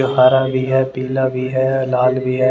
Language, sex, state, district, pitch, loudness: Hindi, male, Haryana, Jhajjar, 130 Hz, -16 LUFS